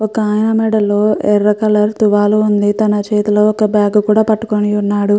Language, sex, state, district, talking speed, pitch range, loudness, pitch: Telugu, female, Andhra Pradesh, Chittoor, 160 wpm, 210-215 Hz, -13 LUFS, 210 Hz